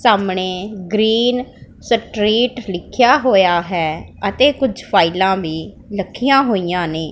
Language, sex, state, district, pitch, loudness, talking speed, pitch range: Punjabi, female, Punjab, Pathankot, 200 Hz, -16 LUFS, 110 wpm, 180-245 Hz